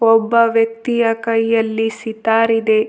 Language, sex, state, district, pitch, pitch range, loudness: Kannada, female, Karnataka, Bidar, 225 Hz, 225-230 Hz, -16 LUFS